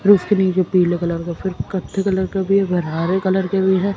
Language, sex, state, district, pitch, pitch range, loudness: Hindi, female, Madhya Pradesh, Umaria, 190 Hz, 180-195 Hz, -18 LUFS